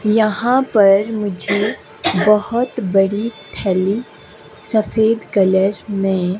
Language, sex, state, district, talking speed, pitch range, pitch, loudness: Hindi, female, Himachal Pradesh, Shimla, 85 wpm, 195-220 Hz, 210 Hz, -17 LUFS